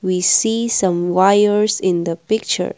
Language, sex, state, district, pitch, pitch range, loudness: English, female, Assam, Kamrup Metropolitan, 195 Hz, 180-215 Hz, -16 LUFS